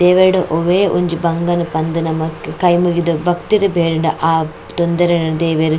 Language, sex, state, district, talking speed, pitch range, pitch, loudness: Tulu, female, Karnataka, Dakshina Kannada, 135 wpm, 160-175 Hz, 170 Hz, -15 LUFS